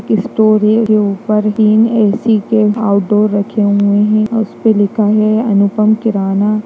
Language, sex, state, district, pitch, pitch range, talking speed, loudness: Hindi, female, Bihar, Jamui, 215 Hz, 205-220 Hz, 170 wpm, -12 LUFS